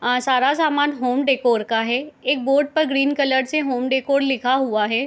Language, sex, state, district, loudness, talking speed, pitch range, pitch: Hindi, female, Bihar, Gopalganj, -19 LUFS, 235 wpm, 250-280 Hz, 265 Hz